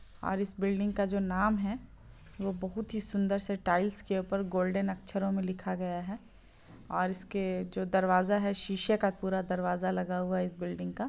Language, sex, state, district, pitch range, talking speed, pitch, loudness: Hindi, female, Bihar, Muzaffarpur, 185-200 Hz, 195 wpm, 195 Hz, -32 LUFS